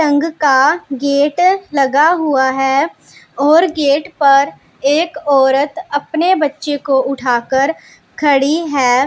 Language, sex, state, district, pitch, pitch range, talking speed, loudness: Hindi, female, Punjab, Pathankot, 285 Hz, 270-310 Hz, 115 wpm, -14 LUFS